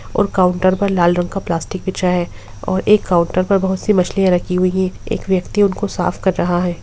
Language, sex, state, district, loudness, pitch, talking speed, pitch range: Hindi, female, Bihar, Gopalganj, -17 LUFS, 185 Hz, 230 wpm, 180-195 Hz